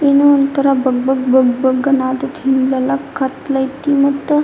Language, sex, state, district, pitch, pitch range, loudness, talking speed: Kannada, female, Karnataka, Dharwad, 270 Hz, 260-280 Hz, -15 LUFS, 135 wpm